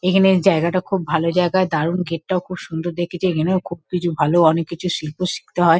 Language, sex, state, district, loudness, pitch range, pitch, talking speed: Bengali, female, West Bengal, Kolkata, -19 LUFS, 165-185 Hz, 175 Hz, 205 wpm